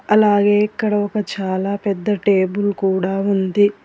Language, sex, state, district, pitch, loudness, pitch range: Telugu, female, Telangana, Hyderabad, 205 Hz, -18 LUFS, 195-205 Hz